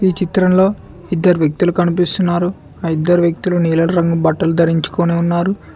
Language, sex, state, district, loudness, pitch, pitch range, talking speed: Telugu, male, Telangana, Mahabubabad, -15 LUFS, 175 Hz, 170-180 Hz, 135 wpm